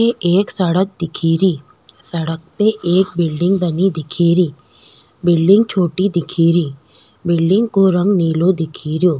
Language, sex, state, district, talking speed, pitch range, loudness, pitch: Rajasthani, female, Rajasthan, Nagaur, 125 wpm, 165-190 Hz, -16 LUFS, 175 Hz